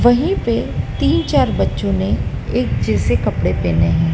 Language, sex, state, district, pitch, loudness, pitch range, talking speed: Hindi, female, Madhya Pradesh, Dhar, 90 Hz, -17 LUFS, 85-120 Hz, 160 wpm